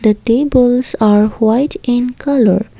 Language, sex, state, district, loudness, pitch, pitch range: English, female, Assam, Kamrup Metropolitan, -13 LUFS, 245 Hz, 215-255 Hz